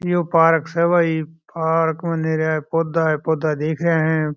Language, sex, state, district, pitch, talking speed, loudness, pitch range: Marwari, male, Rajasthan, Churu, 160 Hz, 180 wpm, -19 LUFS, 160-165 Hz